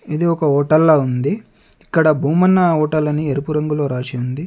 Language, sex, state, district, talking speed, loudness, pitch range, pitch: Telugu, male, Telangana, Adilabad, 160 wpm, -16 LUFS, 140-160 Hz, 155 Hz